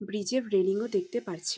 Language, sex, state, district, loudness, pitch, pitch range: Bengali, female, West Bengal, North 24 Parganas, -29 LUFS, 200 Hz, 190-225 Hz